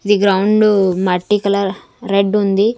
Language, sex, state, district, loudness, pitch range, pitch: Telugu, female, Andhra Pradesh, Sri Satya Sai, -15 LUFS, 195-210 Hz, 200 Hz